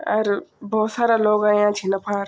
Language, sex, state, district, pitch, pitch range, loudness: Garhwali, female, Uttarakhand, Tehri Garhwal, 210 Hz, 205-215 Hz, -20 LUFS